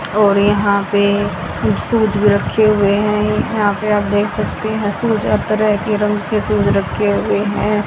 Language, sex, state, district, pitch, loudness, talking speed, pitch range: Hindi, female, Haryana, Rohtak, 210 Hz, -15 LUFS, 185 wpm, 205-210 Hz